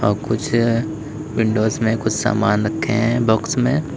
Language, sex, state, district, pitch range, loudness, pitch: Hindi, male, Uttar Pradesh, Lalitpur, 110-120 Hz, -19 LUFS, 110 Hz